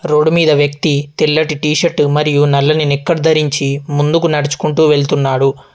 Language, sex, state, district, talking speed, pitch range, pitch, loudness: Telugu, male, Telangana, Adilabad, 135 wpm, 145-155 Hz, 150 Hz, -13 LUFS